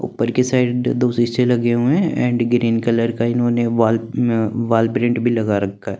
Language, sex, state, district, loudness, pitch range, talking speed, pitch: Hindi, male, Chandigarh, Chandigarh, -18 LUFS, 115-120 Hz, 180 wpm, 120 Hz